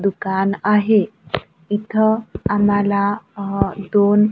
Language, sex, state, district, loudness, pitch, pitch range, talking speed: Marathi, female, Maharashtra, Gondia, -18 LUFS, 205 Hz, 195-210 Hz, 85 wpm